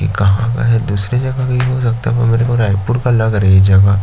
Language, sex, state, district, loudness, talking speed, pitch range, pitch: Hindi, male, Chhattisgarh, Jashpur, -13 LUFS, 295 wpm, 100-120 Hz, 115 Hz